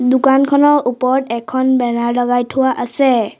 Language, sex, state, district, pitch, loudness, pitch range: Assamese, female, Assam, Sonitpur, 255 Hz, -14 LUFS, 245-270 Hz